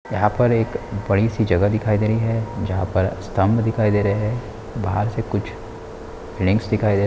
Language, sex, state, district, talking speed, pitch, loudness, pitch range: Hindi, male, Bihar, Madhepura, 185 wpm, 105 Hz, -21 LUFS, 100-115 Hz